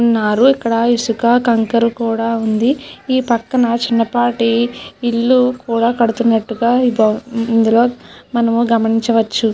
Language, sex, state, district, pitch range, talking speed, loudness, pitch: Telugu, female, Andhra Pradesh, Krishna, 230-240 Hz, 95 wpm, -15 LUFS, 235 Hz